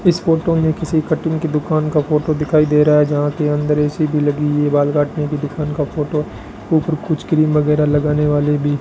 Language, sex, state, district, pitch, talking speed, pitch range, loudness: Hindi, male, Rajasthan, Bikaner, 150 Hz, 230 wpm, 150-155 Hz, -17 LUFS